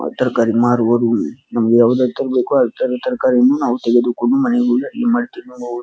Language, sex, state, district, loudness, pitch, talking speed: Kannada, male, Karnataka, Dharwad, -16 LUFS, 125 Hz, 105 wpm